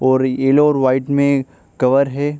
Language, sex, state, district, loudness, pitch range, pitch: Hindi, male, Maharashtra, Chandrapur, -16 LUFS, 130-140 Hz, 135 Hz